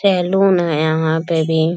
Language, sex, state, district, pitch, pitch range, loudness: Hindi, male, Bihar, Bhagalpur, 165 Hz, 160-185 Hz, -16 LUFS